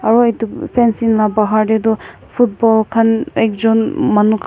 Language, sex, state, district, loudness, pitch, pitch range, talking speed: Nagamese, female, Nagaland, Kohima, -14 LUFS, 225 Hz, 215-230 Hz, 160 wpm